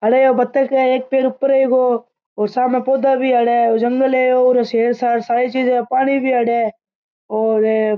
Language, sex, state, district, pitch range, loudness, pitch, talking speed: Marwari, male, Rajasthan, Churu, 235-260 Hz, -16 LUFS, 250 Hz, 225 wpm